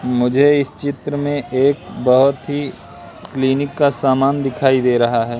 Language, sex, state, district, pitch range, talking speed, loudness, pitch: Hindi, male, Madhya Pradesh, Katni, 125-145 Hz, 155 wpm, -16 LUFS, 135 Hz